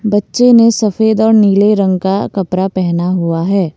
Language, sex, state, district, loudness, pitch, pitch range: Hindi, female, Assam, Kamrup Metropolitan, -12 LUFS, 195 Hz, 185-215 Hz